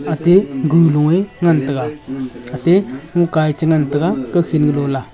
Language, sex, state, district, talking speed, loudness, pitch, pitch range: Wancho, male, Arunachal Pradesh, Longding, 115 wpm, -16 LUFS, 150 Hz, 140-170 Hz